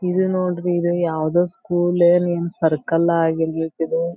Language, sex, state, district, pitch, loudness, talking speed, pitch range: Kannada, female, Karnataka, Belgaum, 175 Hz, -19 LUFS, 115 wpm, 165-175 Hz